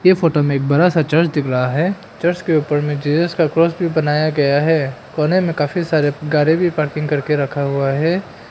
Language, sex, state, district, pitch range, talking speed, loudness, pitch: Hindi, male, Arunachal Pradesh, Papum Pare, 145-170 Hz, 220 wpm, -17 LUFS, 155 Hz